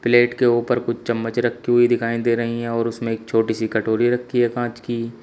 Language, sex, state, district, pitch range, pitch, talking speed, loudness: Hindi, male, Uttar Pradesh, Shamli, 115-120 Hz, 120 Hz, 240 wpm, -20 LUFS